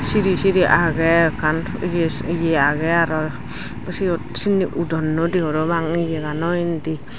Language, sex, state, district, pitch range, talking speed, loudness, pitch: Chakma, female, Tripura, Dhalai, 155-170 Hz, 115 wpm, -19 LUFS, 165 Hz